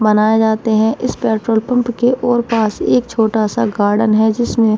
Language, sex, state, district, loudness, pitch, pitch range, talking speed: Hindi, female, Uttar Pradesh, Budaun, -15 LUFS, 225 Hz, 215-240 Hz, 200 wpm